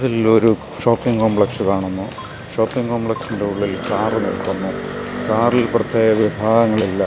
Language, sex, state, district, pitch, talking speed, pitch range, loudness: Malayalam, male, Kerala, Kasaragod, 110 Hz, 110 wpm, 105-115 Hz, -18 LUFS